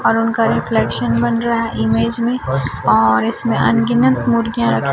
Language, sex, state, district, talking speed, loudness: Hindi, male, Chhattisgarh, Raipur, 160 wpm, -16 LUFS